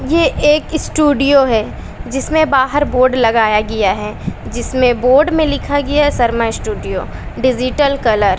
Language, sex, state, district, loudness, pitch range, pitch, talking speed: Hindi, female, Bihar, West Champaran, -14 LUFS, 230-290 Hz, 260 Hz, 145 wpm